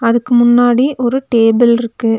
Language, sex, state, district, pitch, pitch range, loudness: Tamil, female, Tamil Nadu, Nilgiris, 240 Hz, 230-245 Hz, -12 LUFS